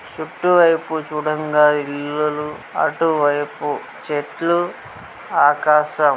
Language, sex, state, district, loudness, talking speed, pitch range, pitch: Telugu, male, Telangana, Karimnagar, -18 LUFS, 80 wpm, 150-160 Hz, 150 Hz